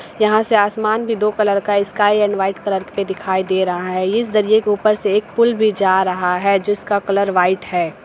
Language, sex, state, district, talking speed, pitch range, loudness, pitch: Hindi, female, Bihar, Sitamarhi, 230 wpm, 190-215 Hz, -17 LUFS, 205 Hz